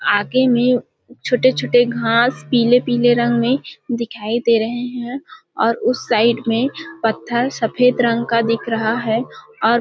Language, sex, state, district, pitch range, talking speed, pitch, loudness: Hindi, female, Chhattisgarh, Balrampur, 230-250 Hz, 145 wpm, 240 Hz, -17 LUFS